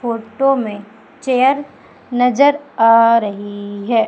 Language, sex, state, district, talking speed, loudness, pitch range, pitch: Hindi, female, Madhya Pradesh, Umaria, 105 wpm, -15 LUFS, 220-270 Hz, 230 Hz